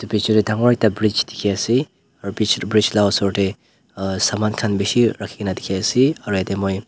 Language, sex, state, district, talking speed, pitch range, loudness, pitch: Nagamese, male, Nagaland, Dimapur, 190 wpm, 100-110 Hz, -19 LUFS, 105 Hz